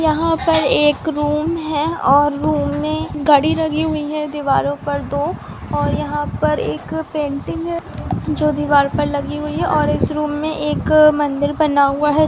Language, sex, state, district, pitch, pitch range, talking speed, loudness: Hindi, female, Bihar, Araria, 295 Hz, 285-310 Hz, 185 wpm, -17 LUFS